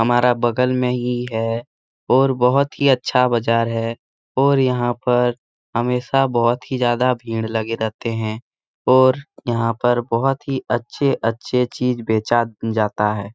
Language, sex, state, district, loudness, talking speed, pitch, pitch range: Hindi, male, Bihar, Jahanabad, -19 LUFS, 150 wpm, 120 Hz, 115-125 Hz